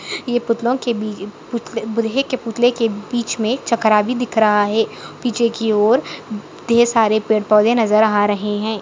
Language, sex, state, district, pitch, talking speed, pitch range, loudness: Hindi, female, Maharashtra, Nagpur, 225 Hz, 150 wpm, 215-240 Hz, -17 LUFS